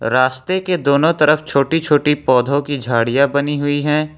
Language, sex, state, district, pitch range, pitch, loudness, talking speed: Hindi, male, Jharkhand, Ranchi, 140-150 Hz, 145 Hz, -16 LUFS, 170 wpm